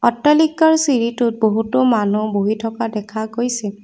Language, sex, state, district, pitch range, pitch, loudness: Assamese, female, Assam, Kamrup Metropolitan, 215-255 Hz, 230 Hz, -17 LUFS